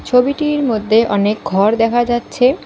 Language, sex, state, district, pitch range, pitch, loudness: Bengali, female, West Bengal, Alipurduar, 215-250 Hz, 235 Hz, -15 LUFS